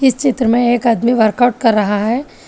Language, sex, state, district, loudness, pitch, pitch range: Hindi, female, Telangana, Hyderabad, -14 LUFS, 240 Hz, 225-245 Hz